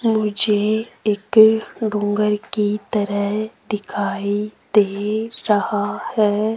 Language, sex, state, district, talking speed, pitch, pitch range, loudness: Hindi, female, Rajasthan, Jaipur, 80 wpm, 210 Hz, 205-220 Hz, -19 LUFS